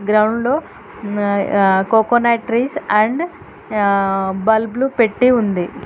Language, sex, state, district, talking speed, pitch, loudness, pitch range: Telugu, female, Telangana, Hyderabad, 100 wpm, 220 Hz, -16 LUFS, 200-240 Hz